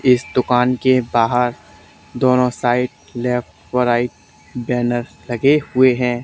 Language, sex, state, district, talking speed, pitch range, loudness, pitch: Hindi, male, Haryana, Charkhi Dadri, 125 wpm, 120-125 Hz, -17 LUFS, 125 Hz